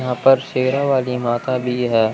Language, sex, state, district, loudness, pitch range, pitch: Hindi, male, Chandigarh, Chandigarh, -18 LUFS, 120-130 Hz, 125 Hz